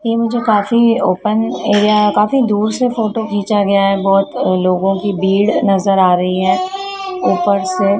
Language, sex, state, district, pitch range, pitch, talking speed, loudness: Hindi, female, Madhya Pradesh, Dhar, 195-230 Hz, 205 Hz, 165 wpm, -14 LUFS